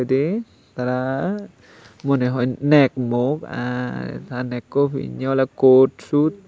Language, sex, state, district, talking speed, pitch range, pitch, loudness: Chakma, male, Tripura, Unakoti, 120 wpm, 125-145 Hz, 130 Hz, -20 LUFS